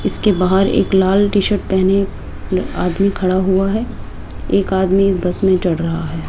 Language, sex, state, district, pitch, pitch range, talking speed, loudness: Hindi, female, Rajasthan, Jaipur, 190 Hz, 185-195 Hz, 170 wpm, -16 LUFS